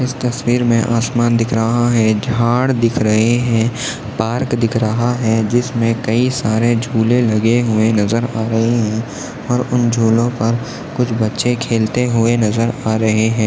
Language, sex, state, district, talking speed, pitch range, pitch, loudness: Hindi, male, Maharashtra, Nagpur, 165 wpm, 110-120 Hz, 115 Hz, -16 LUFS